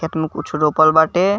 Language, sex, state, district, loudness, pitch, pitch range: Bhojpuri, male, Bihar, East Champaran, -16 LUFS, 160 Hz, 155-160 Hz